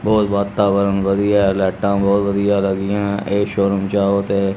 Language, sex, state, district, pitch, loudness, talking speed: Punjabi, male, Punjab, Kapurthala, 100 Hz, -17 LUFS, 145 wpm